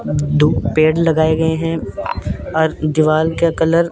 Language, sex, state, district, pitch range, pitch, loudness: Hindi, male, Chandigarh, Chandigarh, 155-165 Hz, 160 Hz, -16 LUFS